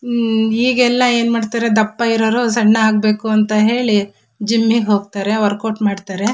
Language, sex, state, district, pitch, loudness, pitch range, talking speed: Kannada, female, Karnataka, Shimoga, 220 Hz, -15 LUFS, 215-235 Hz, 125 wpm